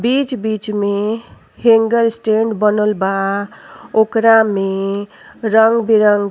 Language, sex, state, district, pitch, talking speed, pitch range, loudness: Bhojpuri, female, Uttar Pradesh, Ghazipur, 220 Hz, 105 wpm, 205-225 Hz, -15 LUFS